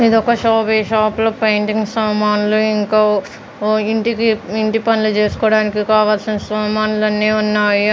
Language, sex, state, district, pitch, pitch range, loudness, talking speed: Telugu, female, Andhra Pradesh, Sri Satya Sai, 215 Hz, 210-220 Hz, -15 LUFS, 135 wpm